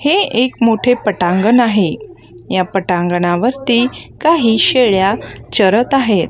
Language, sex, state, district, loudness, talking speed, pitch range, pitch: Marathi, female, Maharashtra, Gondia, -14 LUFS, 105 wpm, 185-245 Hz, 220 Hz